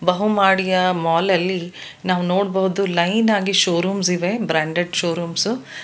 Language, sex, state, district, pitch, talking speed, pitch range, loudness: Kannada, female, Karnataka, Bangalore, 185 Hz, 125 wpm, 175-195 Hz, -19 LUFS